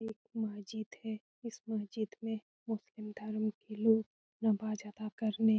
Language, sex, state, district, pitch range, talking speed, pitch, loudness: Hindi, female, Bihar, Lakhisarai, 215-220 Hz, 160 wpm, 220 Hz, -38 LUFS